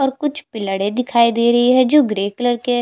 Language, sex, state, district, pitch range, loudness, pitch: Hindi, female, Chhattisgarh, Jashpur, 225-260 Hz, -16 LUFS, 245 Hz